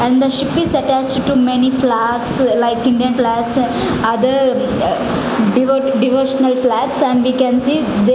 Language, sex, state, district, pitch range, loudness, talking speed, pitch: English, female, Punjab, Fazilka, 245-265 Hz, -14 LUFS, 155 wpm, 255 Hz